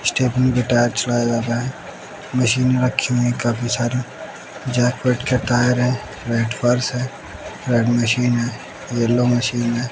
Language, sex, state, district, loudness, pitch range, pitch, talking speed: Hindi, male, Bihar, West Champaran, -19 LUFS, 120-125 Hz, 125 Hz, 150 wpm